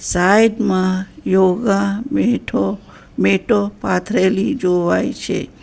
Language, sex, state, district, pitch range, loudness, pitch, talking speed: Gujarati, female, Gujarat, Valsad, 185-215 Hz, -17 LUFS, 195 Hz, 85 wpm